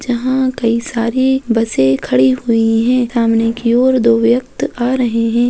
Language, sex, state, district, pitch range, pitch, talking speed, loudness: Hindi, female, Bihar, Muzaffarpur, 230-255 Hz, 235 Hz, 165 wpm, -14 LUFS